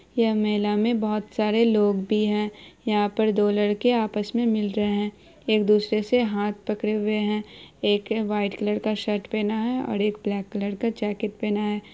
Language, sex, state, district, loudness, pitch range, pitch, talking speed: Hindi, female, Bihar, Araria, -24 LUFS, 210-220 Hz, 210 Hz, 200 wpm